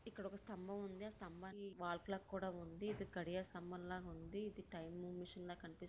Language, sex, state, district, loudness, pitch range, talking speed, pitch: Telugu, female, Andhra Pradesh, Visakhapatnam, -50 LUFS, 175-200 Hz, 195 wpm, 185 Hz